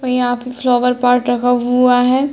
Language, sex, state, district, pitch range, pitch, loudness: Hindi, female, Uttar Pradesh, Hamirpur, 245-250 Hz, 245 Hz, -14 LUFS